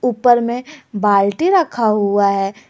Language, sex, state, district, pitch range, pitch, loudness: Hindi, female, Jharkhand, Garhwa, 200-250 Hz, 225 Hz, -15 LUFS